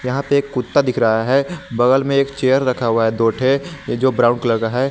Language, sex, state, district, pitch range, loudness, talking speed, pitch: Hindi, male, Jharkhand, Garhwa, 120-140 Hz, -17 LUFS, 270 wpm, 130 Hz